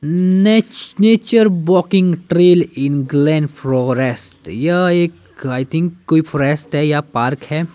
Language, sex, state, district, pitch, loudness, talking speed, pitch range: Hindi, male, Himachal Pradesh, Shimla, 160 Hz, -15 LUFS, 125 wpm, 140-180 Hz